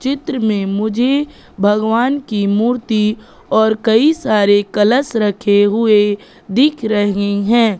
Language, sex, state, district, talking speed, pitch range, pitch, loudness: Hindi, female, Madhya Pradesh, Katni, 115 wpm, 205-245 Hz, 220 Hz, -15 LUFS